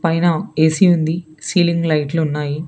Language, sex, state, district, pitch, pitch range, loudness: Telugu, female, Telangana, Hyderabad, 165 Hz, 155-170 Hz, -17 LUFS